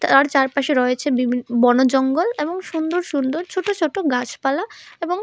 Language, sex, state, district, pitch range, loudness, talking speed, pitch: Bengali, female, Tripura, West Tripura, 260-340 Hz, -19 LUFS, 140 wpm, 280 Hz